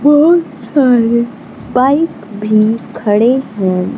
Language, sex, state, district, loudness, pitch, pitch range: Hindi, female, Bihar, Kaimur, -12 LUFS, 235 Hz, 215-275 Hz